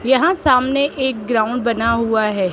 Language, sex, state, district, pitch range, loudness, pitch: Hindi, female, Rajasthan, Jaipur, 225-265 Hz, -17 LUFS, 240 Hz